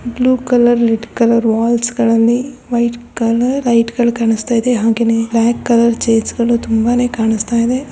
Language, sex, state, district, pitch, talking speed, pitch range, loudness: Kannada, female, Karnataka, Raichur, 235 Hz, 145 wpm, 230-240 Hz, -14 LUFS